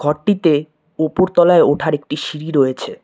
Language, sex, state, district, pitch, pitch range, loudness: Bengali, male, West Bengal, Cooch Behar, 155 Hz, 150-170 Hz, -16 LUFS